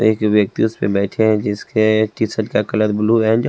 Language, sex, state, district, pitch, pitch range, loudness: Hindi, male, Delhi, New Delhi, 110 Hz, 105-110 Hz, -17 LUFS